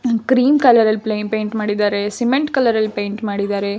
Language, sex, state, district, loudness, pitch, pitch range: Kannada, female, Karnataka, Shimoga, -17 LUFS, 215 Hz, 205-240 Hz